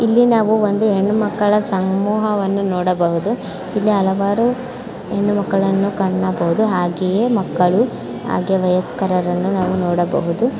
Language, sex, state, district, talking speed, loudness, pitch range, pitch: Kannada, female, Karnataka, Mysore, 90 wpm, -17 LUFS, 185-215 Hz, 200 Hz